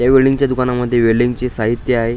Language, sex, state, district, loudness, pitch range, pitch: Marathi, male, Maharashtra, Washim, -15 LUFS, 120-125 Hz, 125 Hz